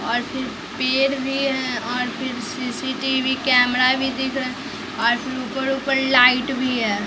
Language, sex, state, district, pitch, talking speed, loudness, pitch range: Hindi, female, Bihar, Patna, 260 Hz, 145 wpm, -20 LUFS, 250-270 Hz